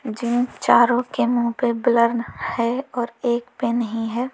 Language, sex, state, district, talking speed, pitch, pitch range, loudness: Hindi, female, Uttar Pradesh, Lalitpur, 165 wpm, 240 Hz, 235-245 Hz, -21 LUFS